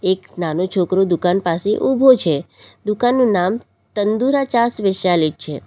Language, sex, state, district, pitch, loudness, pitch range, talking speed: Gujarati, female, Gujarat, Valsad, 190 Hz, -17 LUFS, 175-235 Hz, 140 wpm